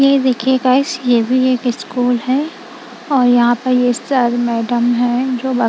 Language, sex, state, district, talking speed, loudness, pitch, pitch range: Hindi, female, Punjab, Kapurthala, 180 wpm, -15 LUFS, 250 Hz, 240-260 Hz